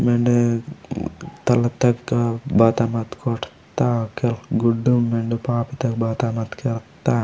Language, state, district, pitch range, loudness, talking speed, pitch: Gondi, Chhattisgarh, Sukma, 115-120 Hz, -21 LUFS, 110 wpm, 120 Hz